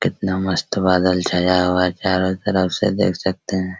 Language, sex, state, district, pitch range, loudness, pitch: Hindi, male, Bihar, Araria, 90-95 Hz, -19 LUFS, 95 Hz